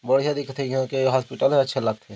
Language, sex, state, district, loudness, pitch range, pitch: Chhattisgarhi, male, Chhattisgarh, Korba, -23 LUFS, 130-135 Hz, 130 Hz